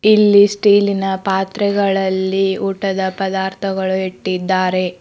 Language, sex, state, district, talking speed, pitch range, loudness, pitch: Kannada, female, Karnataka, Bidar, 70 wpm, 190-200 Hz, -16 LUFS, 195 Hz